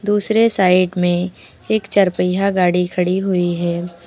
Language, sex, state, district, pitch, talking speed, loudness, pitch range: Hindi, female, Uttar Pradesh, Lucknow, 180 Hz, 145 wpm, -17 LUFS, 175-200 Hz